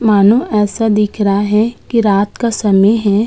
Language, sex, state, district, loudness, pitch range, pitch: Hindi, female, Uttar Pradesh, Budaun, -13 LUFS, 205-225 Hz, 210 Hz